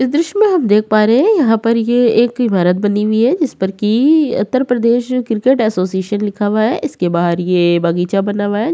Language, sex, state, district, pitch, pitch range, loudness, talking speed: Hindi, female, Uttar Pradesh, Hamirpur, 220 Hz, 205-255 Hz, -14 LUFS, 220 wpm